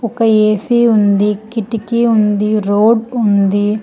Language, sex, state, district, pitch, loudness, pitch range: Telugu, female, Telangana, Hyderabad, 215 Hz, -13 LUFS, 205-230 Hz